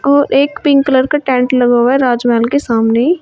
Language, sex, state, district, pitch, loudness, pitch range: Hindi, female, Uttar Pradesh, Shamli, 260 Hz, -12 LUFS, 240-285 Hz